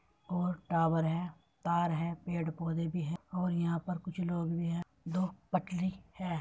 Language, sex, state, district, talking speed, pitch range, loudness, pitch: Hindi, male, Uttar Pradesh, Muzaffarnagar, 175 wpm, 165-180 Hz, -35 LUFS, 170 Hz